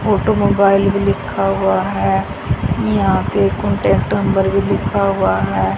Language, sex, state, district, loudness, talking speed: Hindi, female, Haryana, Jhajjar, -16 LUFS, 135 wpm